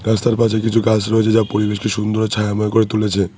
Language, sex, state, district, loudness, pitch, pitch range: Bengali, male, West Bengal, Cooch Behar, -17 LUFS, 110 Hz, 105-110 Hz